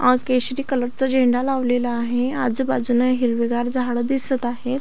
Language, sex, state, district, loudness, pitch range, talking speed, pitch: Marathi, female, Maharashtra, Solapur, -19 LUFS, 245-260 Hz, 150 wpm, 250 Hz